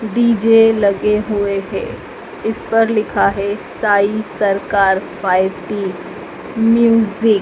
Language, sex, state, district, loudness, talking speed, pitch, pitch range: Hindi, female, Madhya Pradesh, Dhar, -15 LUFS, 105 wpm, 210 Hz, 195-225 Hz